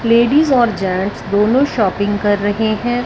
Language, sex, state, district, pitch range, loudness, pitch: Hindi, female, Punjab, Fazilka, 205-240 Hz, -15 LUFS, 215 Hz